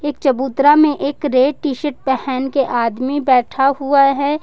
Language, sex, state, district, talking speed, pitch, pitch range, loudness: Hindi, female, Jharkhand, Ranchi, 175 wpm, 275 Hz, 265-290 Hz, -16 LUFS